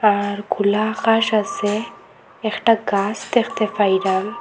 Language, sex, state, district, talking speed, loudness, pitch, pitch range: Bengali, female, Assam, Hailakandi, 110 wpm, -19 LUFS, 215 Hz, 200-225 Hz